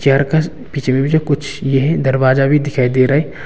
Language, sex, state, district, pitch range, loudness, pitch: Hindi, male, Arunachal Pradesh, Longding, 135-150 Hz, -15 LUFS, 140 Hz